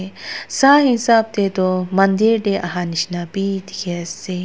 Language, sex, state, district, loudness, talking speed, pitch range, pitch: Nagamese, female, Nagaland, Dimapur, -17 LUFS, 150 wpm, 180-220 Hz, 195 Hz